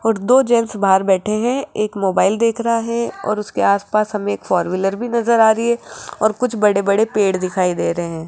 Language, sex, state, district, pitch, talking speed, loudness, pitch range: Hindi, female, Rajasthan, Jaipur, 215 Hz, 240 wpm, -17 LUFS, 195-230 Hz